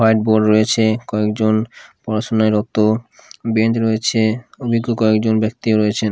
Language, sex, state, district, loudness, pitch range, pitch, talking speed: Bengali, male, Odisha, Khordha, -17 LUFS, 110-115 Hz, 110 Hz, 120 wpm